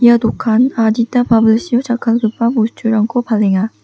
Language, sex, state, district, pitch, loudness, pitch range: Garo, female, Meghalaya, West Garo Hills, 230 Hz, -14 LUFS, 220-240 Hz